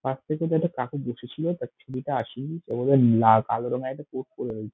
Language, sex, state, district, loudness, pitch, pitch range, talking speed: Bengali, male, West Bengal, Dakshin Dinajpur, -26 LUFS, 130 Hz, 120-150 Hz, 240 wpm